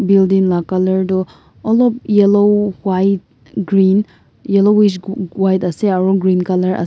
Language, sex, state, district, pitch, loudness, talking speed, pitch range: Nagamese, male, Nagaland, Kohima, 195 Hz, -14 LUFS, 130 wpm, 185-200 Hz